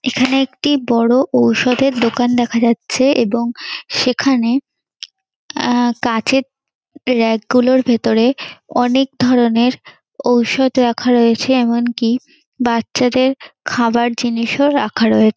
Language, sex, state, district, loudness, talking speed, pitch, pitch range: Bengali, female, West Bengal, North 24 Parganas, -15 LUFS, 100 wpm, 245 Hz, 235-260 Hz